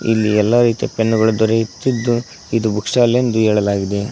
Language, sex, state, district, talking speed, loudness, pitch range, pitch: Kannada, male, Karnataka, Koppal, 160 wpm, -16 LUFS, 105-120 Hz, 110 Hz